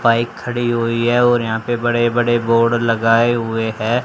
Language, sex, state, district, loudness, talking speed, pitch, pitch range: Hindi, male, Haryana, Charkhi Dadri, -16 LUFS, 195 wpm, 120 Hz, 115-120 Hz